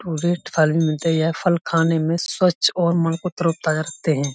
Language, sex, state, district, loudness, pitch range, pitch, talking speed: Hindi, male, Uttar Pradesh, Budaun, -20 LUFS, 160-175 Hz, 165 Hz, 180 wpm